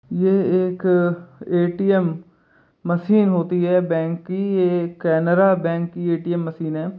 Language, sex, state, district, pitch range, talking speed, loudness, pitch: Hindi, male, Uttar Pradesh, Jalaun, 170-185 Hz, 130 wpm, -20 LUFS, 175 Hz